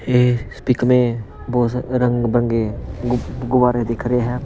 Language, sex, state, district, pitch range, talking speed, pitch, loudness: Hindi, male, Punjab, Pathankot, 115-125 Hz, 160 wpm, 120 Hz, -19 LUFS